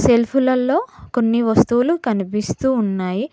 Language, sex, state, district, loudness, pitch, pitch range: Telugu, female, Telangana, Mahabubabad, -18 LUFS, 240 Hz, 220-265 Hz